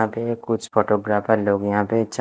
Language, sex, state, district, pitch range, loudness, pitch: Hindi, male, Haryana, Rohtak, 105-115 Hz, -21 LUFS, 110 Hz